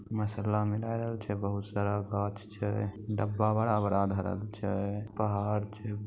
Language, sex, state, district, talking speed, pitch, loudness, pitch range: Maithili, male, Bihar, Begusarai, 130 wpm, 105 Hz, -32 LUFS, 100-105 Hz